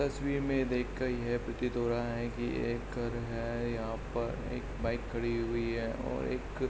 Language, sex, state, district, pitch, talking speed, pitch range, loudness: Hindi, male, Uttar Pradesh, Jalaun, 120 Hz, 225 wpm, 115-125 Hz, -35 LUFS